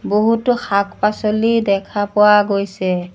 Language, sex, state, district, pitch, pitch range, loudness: Assamese, female, Assam, Sonitpur, 210 Hz, 200-220 Hz, -16 LUFS